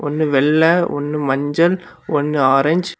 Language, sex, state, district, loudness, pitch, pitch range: Tamil, male, Tamil Nadu, Kanyakumari, -16 LUFS, 150 Hz, 145-170 Hz